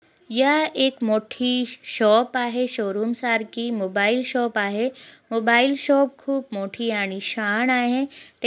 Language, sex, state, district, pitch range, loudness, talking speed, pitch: Marathi, female, Maharashtra, Chandrapur, 220-255 Hz, -22 LUFS, 120 wpm, 240 Hz